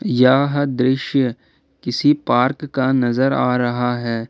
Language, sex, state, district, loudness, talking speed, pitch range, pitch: Hindi, male, Jharkhand, Ranchi, -18 LUFS, 125 wpm, 125-135 Hz, 130 Hz